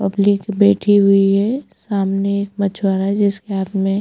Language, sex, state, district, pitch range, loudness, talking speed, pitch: Hindi, female, Chhattisgarh, Bastar, 195-205 Hz, -17 LUFS, 165 wpm, 200 Hz